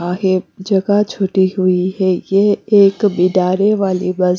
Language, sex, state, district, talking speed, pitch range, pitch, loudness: Hindi, female, Punjab, Fazilka, 165 wpm, 185-200 Hz, 190 Hz, -15 LUFS